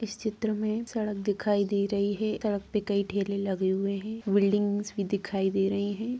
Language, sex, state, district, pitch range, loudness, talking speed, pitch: Hindi, female, Bihar, Sitamarhi, 200-215 Hz, -29 LUFS, 205 wpm, 205 Hz